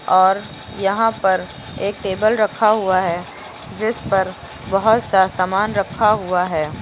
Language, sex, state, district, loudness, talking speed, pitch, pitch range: Hindi, female, Uttar Pradesh, Lucknow, -18 LUFS, 140 wpm, 195 Hz, 185-215 Hz